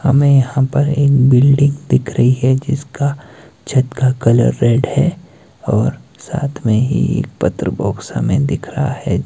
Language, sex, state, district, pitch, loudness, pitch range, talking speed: Hindi, male, Himachal Pradesh, Shimla, 135 Hz, -15 LUFS, 125-140 Hz, 160 wpm